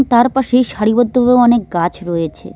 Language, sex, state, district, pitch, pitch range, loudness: Bengali, female, West Bengal, Cooch Behar, 240 Hz, 175-245 Hz, -14 LUFS